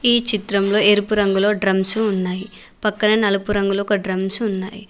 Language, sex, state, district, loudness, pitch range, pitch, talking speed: Telugu, female, Telangana, Mahabubabad, -18 LUFS, 195-210 Hz, 205 Hz, 145 wpm